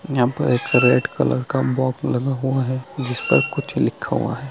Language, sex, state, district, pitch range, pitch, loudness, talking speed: Hindi, male, West Bengal, Dakshin Dinajpur, 125-135 Hz, 130 Hz, -20 LUFS, 225 wpm